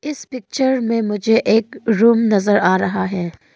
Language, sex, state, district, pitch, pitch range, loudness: Hindi, female, Arunachal Pradesh, Longding, 220 Hz, 195-235 Hz, -17 LUFS